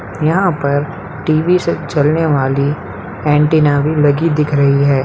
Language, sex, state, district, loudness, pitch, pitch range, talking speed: Hindi, female, Bihar, Darbhanga, -14 LUFS, 150 Hz, 145-160 Hz, 140 wpm